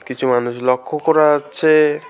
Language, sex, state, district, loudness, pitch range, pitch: Bengali, male, West Bengal, Alipurduar, -16 LUFS, 125-155 Hz, 150 Hz